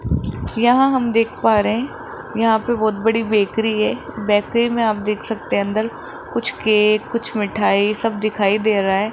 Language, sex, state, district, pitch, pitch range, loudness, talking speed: Hindi, male, Rajasthan, Jaipur, 220 Hz, 210-235 Hz, -18 LUFS, 190 wpm